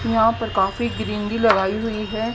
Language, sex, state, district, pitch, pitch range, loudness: Hindi, female, Haryana, Jhajjar, 220 Hz, 210-225 Hz, -21 LUFS